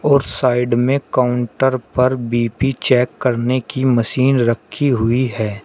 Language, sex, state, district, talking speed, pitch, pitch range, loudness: Hindi, male, Uttar Pradesh, Shamli, 140 wpm, 125 Hz, 120-130 Hz, -17 LUFS